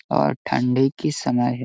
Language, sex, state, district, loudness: Hindi, male, Bihar, Gaya, -21 LUFS